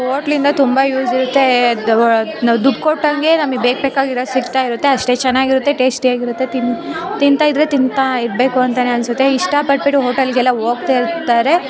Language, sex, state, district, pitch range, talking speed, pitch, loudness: Kannada, female, Karnataka, Chamarajanagar, 245-280 Hz, 160 wpm, 260 Hz, -14 LUFS